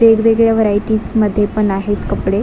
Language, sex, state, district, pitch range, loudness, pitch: Marathi, female, Maharashtra, Dhule, 205-225 Hz, -14 LUFS, 215 Hz